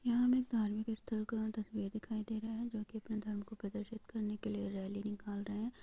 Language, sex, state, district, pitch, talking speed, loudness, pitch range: Hindi, female, Jharkhand, Sahebganj, 215 Hz, 245 wpm, -40 LUFS, 210-225 Hz